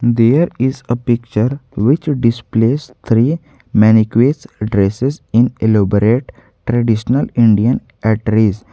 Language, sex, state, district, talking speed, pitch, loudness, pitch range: English, male, Jharkhand, Garhwa, 95 wpm, 115 Hz, -15 LUFS, 110-130 Hz